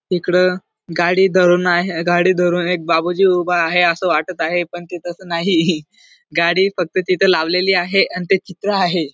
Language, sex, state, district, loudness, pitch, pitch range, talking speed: Marathi, male, Maharashtra, Dhule, -16 LUFS, 175 Hz, 170-185 Hz, 170 wpm